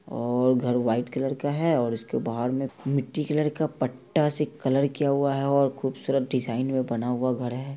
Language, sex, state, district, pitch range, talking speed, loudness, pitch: Hindi, male, Bihar, Araria, 125-140 Hz, 200 wpm, -26 LUFS, 135 Hz